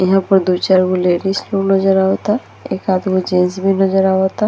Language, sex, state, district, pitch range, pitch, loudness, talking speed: Bhojpuri, female, Bihar, Gopalganj, 185-195 Hz, 190 Hz, -15 LUFS, 225 wpm